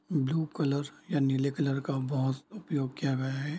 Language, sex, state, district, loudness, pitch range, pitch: Hindi, male, Bihar, Darbhanga, -31 LUFS, 135-150 Hz, 140 Hz